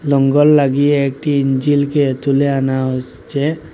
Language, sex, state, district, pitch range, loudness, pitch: Bengali, male, Assam, Hailakandi, 135-145 Hz, -15 LUFS, 140 Hz